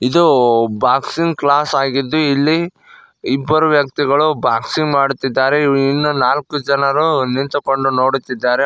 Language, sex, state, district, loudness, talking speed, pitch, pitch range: Kannada, male, Karnataka, Koppal, -15 LUFS, 95 wpm, 140 Hz, 135-155 Hz